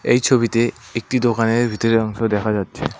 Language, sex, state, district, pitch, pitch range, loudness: Bengali, male, West Bengal, Cooch Behar, 115 Hz, 110-120 Hz, -19 LUFS